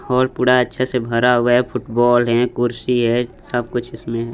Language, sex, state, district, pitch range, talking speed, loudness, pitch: Hindi, male, Bihar, Kaimur, 120-125 Hz, 205 wpm, -18 LUFS, 120 Hz